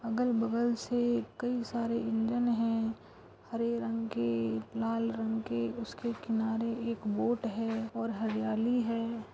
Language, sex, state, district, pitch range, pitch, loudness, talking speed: Hindi, female, Goa, North and South Goa, 225-235 Hz, 230 Hz, -33 LUFS, 135 wpm